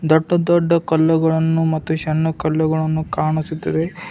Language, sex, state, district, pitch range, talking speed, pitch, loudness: Kannada, male, Karnataka, Bidar, 155-165 Hz, 100 wpm, 160 Hz, -18 LUFS